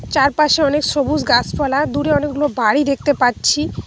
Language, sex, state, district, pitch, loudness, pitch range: Bengali, female, West Bengal, Cooch Behar, 290 Hz, -16 LUFS, 280-295 Hz